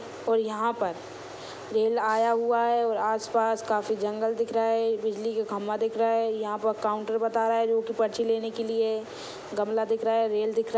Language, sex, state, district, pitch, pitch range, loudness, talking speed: Hindi, female, Chhattisgarh, Sukma, 225 Hz, 220-225 Hz, -27 LUFS, 230 wpm